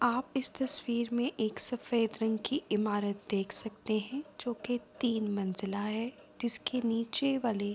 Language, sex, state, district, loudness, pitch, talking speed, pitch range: Urdu, female, Andhra Pradesh, Anantapur, -34 LUFS, 230 Hz, 155 wpm, 210-250 Hz